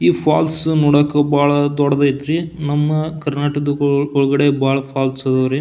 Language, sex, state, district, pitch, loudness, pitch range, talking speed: Kannada, male, Karnataka, Belgaum, 145 Hz, -16 LUFS, 140-150 Hz, 130 wpm